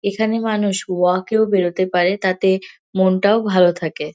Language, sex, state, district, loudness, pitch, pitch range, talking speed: Bengali, female, West Bengal, North 24 Parganas, -18 LUFS, 190 Hz, 180-205 Hz, 130 wpm